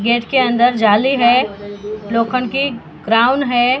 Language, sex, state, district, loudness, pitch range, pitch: Hindi, female, Maharashtra, Mumbai Suburban, -15 LUFS, 215-255 Hz, 240 Hz